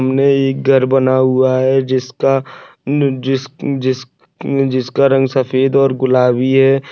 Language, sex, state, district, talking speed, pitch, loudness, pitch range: Hindi, male, Maharashtra, Dhule, 130 wpm, 135 Hz, -14 LUFS, 130-135 Hz